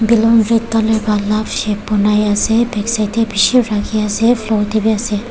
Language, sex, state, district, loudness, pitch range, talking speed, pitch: Nagamese, female, Nagaland, Kohima, -14 LUFS, 210-225 Hz, 205 wpm, 215 Hz